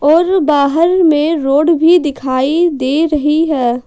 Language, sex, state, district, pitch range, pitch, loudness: Hindi, female, Jharkhand, Ranchi, 280-330 Hz, 300 Hz, -12 LUFS